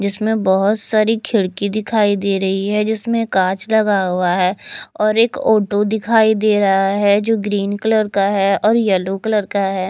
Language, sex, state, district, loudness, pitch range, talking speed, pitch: Hindi, female, Chandigarh, Chandigarh, -16 LUFS, 195-220 Hz, 180 wpm, 205 Hz